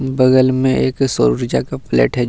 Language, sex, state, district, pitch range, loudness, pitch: Hindi, male, Bihar, Gaya, 90-130 Hz, -15 LUFS, 130 Hz